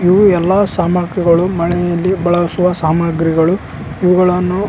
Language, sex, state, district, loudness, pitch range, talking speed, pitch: Kannada, male, Karnataka, Raichur, -13 LUFS, 170-185 Hz, 90 wpm, 180 Hz